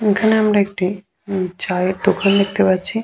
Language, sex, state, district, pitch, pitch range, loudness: Bengali, female, West Bengal, Paschim Medinipur, 195 Hz, 185-205 Hz, -17 LUFS